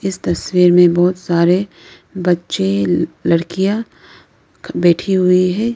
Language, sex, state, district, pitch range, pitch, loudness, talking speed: Hindi, female, Arunachal Pradesh, Lower Dibang Valley, 170-190 Hz, 180 Hz, -15 LUFS, 105 wpm